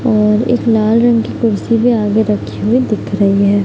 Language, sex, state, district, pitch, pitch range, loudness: Hindi, female, Bihar, Araria, 220 Hz, 210-235 Hz, -13 LUFS